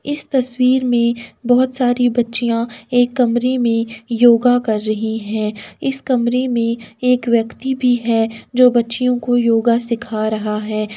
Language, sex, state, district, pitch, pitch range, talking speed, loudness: Hindi, female, Uttar Pradesh, Etah, 240 Hz, 230-250 Hz, 150 wpm, -17 LUFS